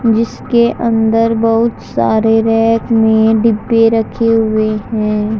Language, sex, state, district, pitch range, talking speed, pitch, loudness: Hindi, male, Haryana, Charkhi Dadri, 220-230 Hz, 110 wpm, 225 Hz, -12 LUFS